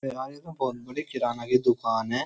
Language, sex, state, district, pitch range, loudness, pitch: Hindi, male, Uttar Pradesh, Jyotiba Phule Nagar, 120-135 Hz, -28 LUFS, 125 Hz